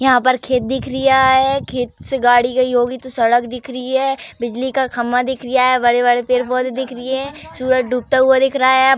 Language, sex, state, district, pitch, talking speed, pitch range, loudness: Hindi, female, Uttar Pradesh, Varanasi, 255 Hz, 240 wpm, 245-265 Hz, -16 LUFS